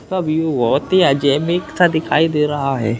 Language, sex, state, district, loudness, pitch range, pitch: Hindi, male, Uttar Pradesh, Hamirpur, -16 LUFS, 140-175 Hz, 160 Hz